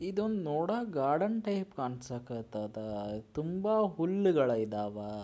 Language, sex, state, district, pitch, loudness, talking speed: Kannada, male, Karnataka, Belgaum, 150 Hz, -33 LUFS, 80 wpm